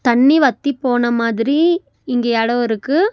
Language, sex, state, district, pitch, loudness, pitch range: Tamil, female, Tamil Nadu, Nilgiris, 245 Hz, -16 LUFS, 235-290 Hz